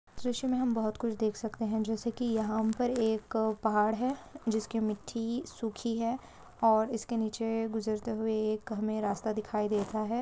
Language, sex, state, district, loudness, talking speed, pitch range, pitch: Hindi, female, Jharkhand, Sahebganj, -32 LUFS, 180 wpm, 215-230 Hz, 220 Hz